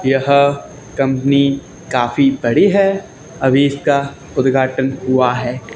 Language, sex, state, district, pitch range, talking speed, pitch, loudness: Hindi, male, Haryana, Charkhi Dadri, 130-140 Hz, 105 wpm, 135 Hz, -15 LUFS